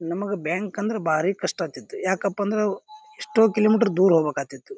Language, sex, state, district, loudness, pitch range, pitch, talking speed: Kannada, male, Karnataka, Bijapur, -23 LUFS, 170-215 Hz, 200 Hz, 150 wpm